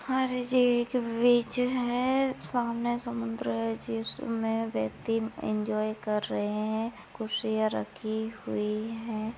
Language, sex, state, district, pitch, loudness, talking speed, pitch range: Hindi, female, Goa, North and South Goa, 225 Hz, -30 LUFS, 115 wpm, 210-245 Hz